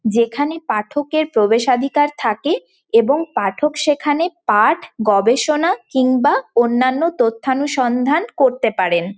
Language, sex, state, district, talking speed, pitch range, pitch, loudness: Bengali, female, West Bengal, Paschim Medinipur, 105 wpm, 235-305 Hz, 270 Hz, -17 LUFS